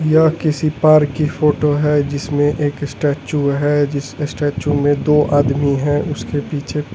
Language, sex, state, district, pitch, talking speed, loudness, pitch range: Hindi, male, Delhi, New Delhi, 145 Hz, 155 wpm, -16 LUFS, 145-150 Hz